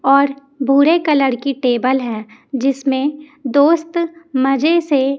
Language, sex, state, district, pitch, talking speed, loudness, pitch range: Hindi, female, Chhattisgarh, Raipur, 275 Hz, 115 wpm, -16 LUFS, 265-295 Hz